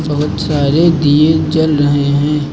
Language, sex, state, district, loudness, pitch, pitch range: Hindi, male, Uttar Pradesh, Lucknow, -12 LUFS, 150 Hz, 145-155 Hz